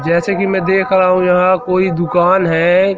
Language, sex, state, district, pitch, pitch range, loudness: Hindi, male, Madhya Pradesh, Katni, 185 Hz, 175-190 Hz, -13 LUFS